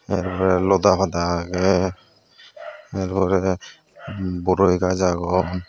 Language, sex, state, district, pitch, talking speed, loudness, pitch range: Chakma, male, Tripura, Dhalai, 95 Hz, 95 wpm, -21 LUFS, 90-95 Hz